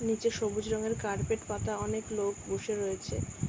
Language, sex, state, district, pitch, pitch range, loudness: Bengali, female, West Bengal, Dakshin Dinajpur, 215 Hz, 195-220 Hz, -33 LUFS